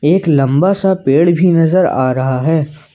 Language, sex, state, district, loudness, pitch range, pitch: Hindi, male, Jharkhand, Ranchi, -12 LUFS, 140-180 Hz, 160 Hz